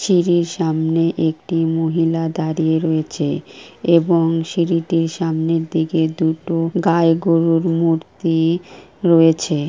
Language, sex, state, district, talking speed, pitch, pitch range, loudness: Bengali, female, West Bengal, Purulia, 95 wpm, 165 Hz, 160-170 Hz, -18 LUFS